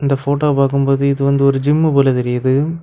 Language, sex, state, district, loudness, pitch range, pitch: Tamil, male, Tamil Nadu, Kanyakumari, -15 LUFS, 135-145 Hz, 140 Hz